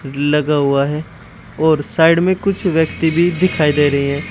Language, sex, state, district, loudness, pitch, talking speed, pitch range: Hindi, male, Uttar Pradesh, Shamli, -15 LUFS, 150 Hz, 180 wpm, 145-165 Hz